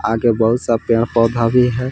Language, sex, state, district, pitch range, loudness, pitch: Hindi, male, Jharkhand, Palamu, 115-120 Hz, -16 LUFS, 115 Hz